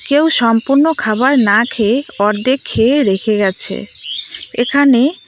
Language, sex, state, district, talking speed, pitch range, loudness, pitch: Bengali, female, West Bengal, Cooch Behar, 115 wpm, 215-280 Hz, -13 LUFS, 245 Hz